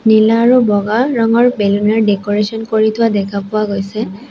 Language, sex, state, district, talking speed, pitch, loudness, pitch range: Assamese, female, Assam, Sonitpur, 165 wpm, 220 Hz, -13 LUFS, 205-230 Hz